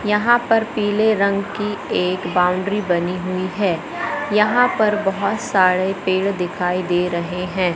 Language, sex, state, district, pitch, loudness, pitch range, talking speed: Hindi, female, Madhya Pradesh, Katni, 195 Hz, -19 LUFS, 180-210 Hz, 145 wpm